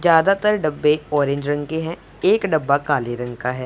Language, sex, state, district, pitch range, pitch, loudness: Hindi, female, Punjab, Pathankot, 140-165 Hz, 150 Hz, -20 LUFS